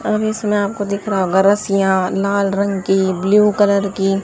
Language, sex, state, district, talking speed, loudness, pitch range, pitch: Hindi, female, Haryana, Charkhi Dadri, 185 wpm, -16 LUFS, 195-205 Hz, 200 Hz